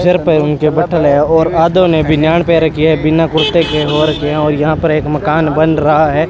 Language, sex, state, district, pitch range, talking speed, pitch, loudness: Hindi, male, Rajasthan, Bikaner, 150-165 Hz, 240 wpm, 155 Hz, -11 LUFS